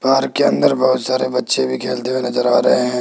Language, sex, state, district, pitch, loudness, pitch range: Hindi, male, Rajasthan, Jaipur, 130 Hz, -16 LUFS, 125-130 Hz